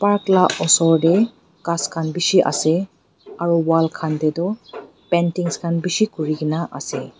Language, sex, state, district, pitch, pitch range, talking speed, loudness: Nagamese, female, Nagaland, Dimapur, 170 Hz, 160-180 Hz, 165 wpm, -19 LUFS